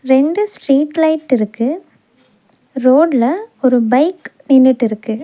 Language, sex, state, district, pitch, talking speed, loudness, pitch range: Tamil, female, Tamil Nadu, Nilgiris, 265 Hz, 105 wpm, -14 LUFS, 245-310 Hz